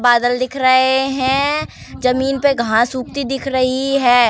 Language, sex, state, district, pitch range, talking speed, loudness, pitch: Hindi, female, Uttar Pradesh, Varanasi, 250-270 Hz, 155 wpm, -16 LUFS, 260 Hz